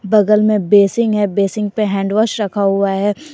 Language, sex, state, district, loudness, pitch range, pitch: Hindi, female, Jharkhand, Garhwa, -15 LUFS, 200-215 Hz, 205 Hz